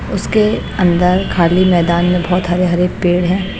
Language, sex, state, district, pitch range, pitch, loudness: Hindi, female, Chhattisgarh, Raipur, 175-185 Hz, 180 Hz, -14 LUFS